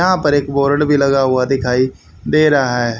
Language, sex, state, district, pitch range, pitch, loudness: Hindi, male, Haryana, Rohtak, 125-145 Hz, 135 Hz, -15 LUFS